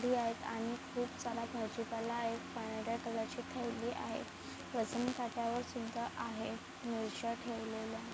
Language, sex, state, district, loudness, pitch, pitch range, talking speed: Marathi, female, Maharashtra, Chandrapur, -41 LUFS, 230 Hz, 225-240 Hz, 135 wpm